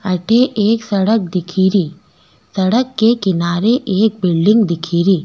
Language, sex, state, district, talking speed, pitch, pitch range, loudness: Rajasthani, female, Rajasthan, Nagaur, 115 wpm, 195 Hz, 180-220 Hz, -15 LUFS